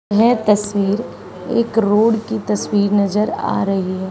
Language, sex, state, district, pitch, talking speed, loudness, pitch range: Hindi, female, Haryana, Charkhi Dadri, 210 Hz, 145 wpm, -17 LUFS, 200-220 Hz